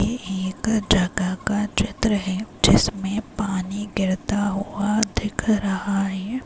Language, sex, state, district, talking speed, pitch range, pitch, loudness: Hindi, male, Rajasthan, Nagaur, 120 wpm, 190-210 Hz, 205 Hz, -23 LUFS